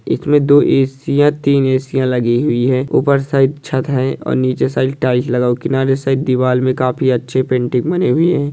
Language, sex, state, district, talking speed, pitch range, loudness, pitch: Hindi, male, Chhattisgarh, Sukma, 195 wpm, 125-140 Hz, -15 LUFS, 130 Hz